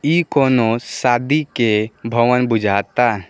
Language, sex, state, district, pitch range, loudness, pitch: Bhojpuri, male, Bihar, East Champaran, 115-135 Hz, -17 LUFS, 120 Hz